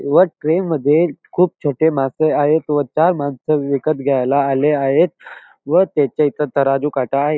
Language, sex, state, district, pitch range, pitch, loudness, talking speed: Marathi, male, Maharashtra, Dhule, 140-155 Hz, 145 Hz, -17 LUFS, 165 wpm